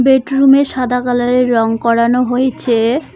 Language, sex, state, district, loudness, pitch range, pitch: Bengali, female, West Bengal, Cooch Behar, -13 LUFS, 235-265 Hz, 250 Hz